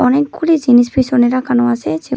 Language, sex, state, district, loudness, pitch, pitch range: Bengali, female, Tripura, West Tripura, -13 LUFS, 255 Hz, 245-280 Hz